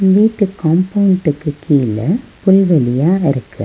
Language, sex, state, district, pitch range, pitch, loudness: Tamil, female, Tamil Nadu, Nilgiris, 145-195 Hz, 175 Hz, -14 LUFS